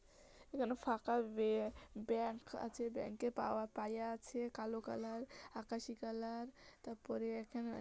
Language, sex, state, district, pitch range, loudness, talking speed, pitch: Bengali, female, West Bengal, North 24 Parganas, 225-240 Hz, -43 LUFS, 130 wpm, 230 Hz